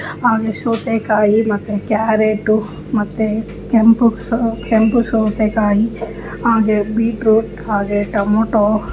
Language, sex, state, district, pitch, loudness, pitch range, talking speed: Kannada, female, Karnataka, Bijapur, 220 Hz, -16 LUFS, 210-225 Hz, 75 wpm